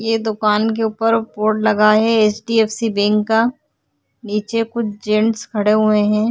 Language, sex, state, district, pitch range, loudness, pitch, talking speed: Hindi, female, Maharashtra, Chandrapur, 210-225 Hz, -17 LUFS, 220 Hz, 180 wpm